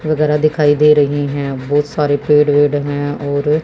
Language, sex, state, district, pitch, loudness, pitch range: Hindi, female, Haryana, Jhajjar, 145 Hz, -14 LUFS, 145-150 Hz